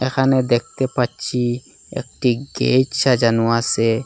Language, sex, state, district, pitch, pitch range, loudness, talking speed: Bengali, male, Assam, Hailakandi, 125 Hz, 120-130 Hz, -19 LUFS, 105 wpm